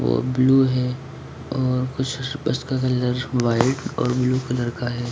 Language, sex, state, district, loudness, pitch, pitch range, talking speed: Hindi, male, Jharkhand, Sahebganj, -22 LUFS, 125 Hz, 125-130 Hz, 165 wpm